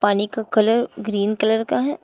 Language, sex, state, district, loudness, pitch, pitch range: Hindi, female, Uttar Pradesh, Shamli, -20 LUFS, 215 Hz, 205-230 Hz